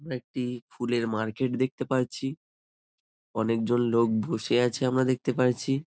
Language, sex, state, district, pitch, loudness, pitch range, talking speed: Bengali, male, West Bengal, Jalpaiguri, 125 Hz, -28 LUFS, 115-130 Hz, 140 wpm